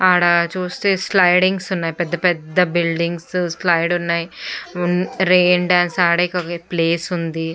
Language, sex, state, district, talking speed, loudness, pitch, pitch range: Telugu, female, Andhra Pradesh, Chittoor, 125 wpm, -18 LUFS, 175 Hz, 170-180 Hz